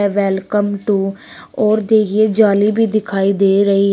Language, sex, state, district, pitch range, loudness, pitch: Hindi, female, Uttar Pradesh, Shamli, 195-215 Hz, -15 LUFS, 205 Hz